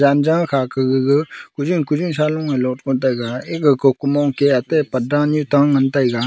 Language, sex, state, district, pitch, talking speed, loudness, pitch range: Wancho, male, Arunachal Pradesh, Longding, 140 Hz, 180 wpm, -17 LUFS, 130-150 Hz